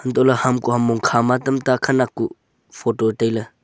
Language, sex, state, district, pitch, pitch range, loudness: Wancho, male, Arunachal Pradesh, Longding, 125 Hz, 115-130 Hz, -19 LUFS